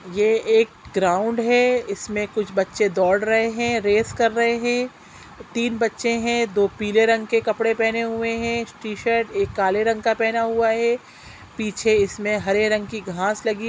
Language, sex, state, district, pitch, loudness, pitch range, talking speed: Hindi, female, Chhattisgarh, Sukma, 225 Hz, -21 LUFS, 210-230 Hz, 175 wpm